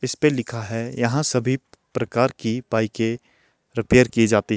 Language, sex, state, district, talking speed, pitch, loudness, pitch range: Hindi, male, Himachal Pradesh, Shimla, 145 wpm, 120 Hz, -22 LUFS, 115-130 Hz